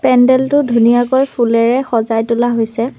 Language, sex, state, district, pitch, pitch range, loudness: Assamese, female, Assam, Sonitpur, 240 Hz, 230-260 Hz, -13 LUFS